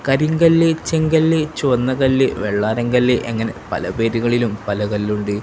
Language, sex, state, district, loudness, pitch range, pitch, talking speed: Malayalam, male, Kerala, Kasaragod, -17 LUFS, 105-145 Hz, 120 Hz, 100 wpm